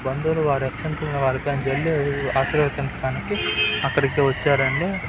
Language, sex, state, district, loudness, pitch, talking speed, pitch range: Telugu, male, Telangana, Karimnagar, -22 LUFS, 140 Hz, 70 wpm, 135-150 Hz